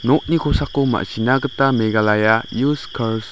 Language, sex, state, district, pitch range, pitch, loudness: Garo, male, Meghalaya, West Garo Hills, 110-140 Hz, 125 Hz, -18 LUFS